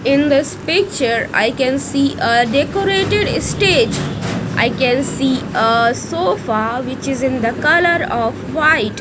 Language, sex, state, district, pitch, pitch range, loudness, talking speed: English, female, Punjab, Kapurthala, 265 Hz, 235-285 Hz, -16 LUFS, 140 wpm